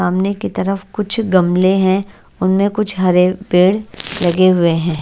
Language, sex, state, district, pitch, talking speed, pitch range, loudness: Hindi, female, Odisha, Nuapada, 185 Hz, 155 wpm, 180-200 Hz, -15 LUFS